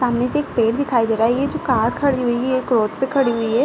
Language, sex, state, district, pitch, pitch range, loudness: Hindi, female, Uttar Pradesh, Ghazipur, 250 Hz, 230-270 Hz, -19 LUFS